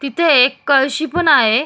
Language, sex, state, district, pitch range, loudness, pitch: Marathi, female, Maharashtra, Solapur, 270-320 Hz, -13 LUFS, 285 Hz